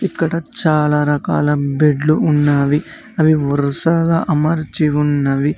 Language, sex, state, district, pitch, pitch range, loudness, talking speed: Telugu, male, Telangana, Mahabubabad, 150 Hz, 145-160 Hz, -16 LUFS, 95 wpm